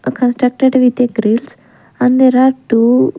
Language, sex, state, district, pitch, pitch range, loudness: English, female, Punjab, Kapurthala, 250 Hz, 235-260 Hz, -12 LUFS